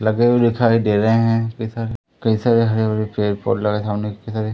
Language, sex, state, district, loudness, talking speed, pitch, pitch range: Hindi, male, Madhya Pradesh, Umaria, -18 LUFS, 225 wpm, 110 Hz, 105-115 Hz